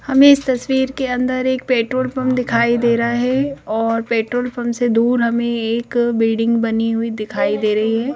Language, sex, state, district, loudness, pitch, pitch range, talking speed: Hindi, female, Madhya Pradesh, Bhopal, -17 LUFS, 235 Hz, 230-255 Hz, 190 wpm